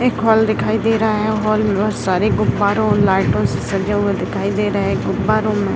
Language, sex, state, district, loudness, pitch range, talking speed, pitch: Hindi, female, Bihar, Gopalganj, -17 LUFS, 205-220 Hz, 240 wpm, 215 Hz